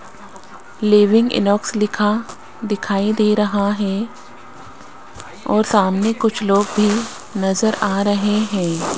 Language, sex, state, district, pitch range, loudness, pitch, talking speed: Hindi, female, Rajasthan, Jaipur, 205-215 Hz, -17 LUFS, 210 Hz, 105 wpm